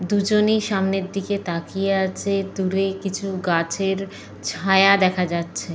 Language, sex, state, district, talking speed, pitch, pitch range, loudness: Bengali, female, Jharkhand, Jamtara, 125 wpm, 195 Hz, 180-195 Hz, -21 LUFS